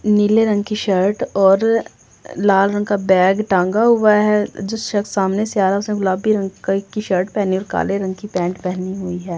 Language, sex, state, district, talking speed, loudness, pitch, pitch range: Hindi, female, Delhi, New Delhi, 190 wpm, -17 LUFS, 200 Hz, 190-210 Hz